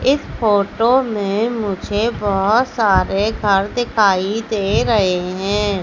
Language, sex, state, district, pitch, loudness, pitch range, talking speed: Hindi, female, Madhya Pradesh, Katni, 205 Hz, -17 LUFS, 195-225 Hz, 115 wpm